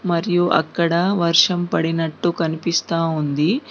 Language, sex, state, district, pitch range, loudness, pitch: Telugu, female, Telangana, Mahabubabad, 165-175 Hz, -19 LUFS, 170 Hz